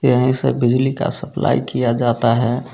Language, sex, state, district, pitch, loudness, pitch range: Hindi, male, Jharkhand, Garhwa, 125 Hz, -17 LUFS, 120-135 Hz